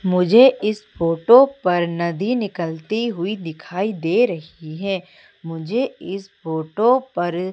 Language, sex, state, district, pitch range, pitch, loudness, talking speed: Hindi, female, Madhya Pradesh, Umaria, 170-220 Hz, 185 Hz, -19 LUFS, 120 wpm